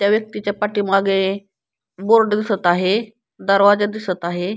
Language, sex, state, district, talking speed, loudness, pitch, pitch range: Marathi, female, Maharashtra, Pune, 120 wpm, -18 LUFS, 200 Hz, 195-210 Hz